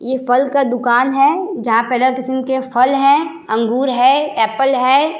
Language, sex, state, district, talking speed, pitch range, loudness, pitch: Hindi, female, Bihar, Vaishali, 185 wpm, 245-275 Hz, -15 LUFS, 260 Hz